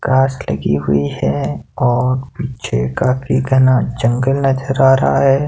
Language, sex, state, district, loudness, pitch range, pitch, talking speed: Hindi, male, Himachal Pradesh, Shimla, -15 LUFS, 120-135 Hz, 130 Hz, 140 wpm